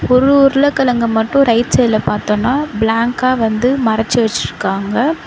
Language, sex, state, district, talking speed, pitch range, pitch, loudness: Tamil, female, Tamil Nadu, Chennai, 115 wpm, 225-270 Hz, 245 Hz, -14 LUFS